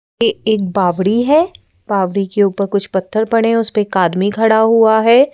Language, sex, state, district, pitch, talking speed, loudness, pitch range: Hindi, female, Madhya Pradesh, Bhopal, 215 Hz, 190 wpm, -14 LUFS, 195-230 Hz